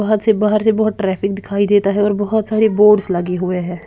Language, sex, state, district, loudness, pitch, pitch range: Hindi, female, Bihar, Patna, -15 LUFS, 205 Hz, 195-215 Hz